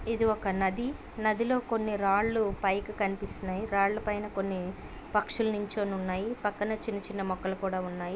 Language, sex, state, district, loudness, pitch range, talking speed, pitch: Telugu, female, Andhra Pradesh, Krishna, -31 LUFS, 195-215 Hz, 145 wpm, 205 Hz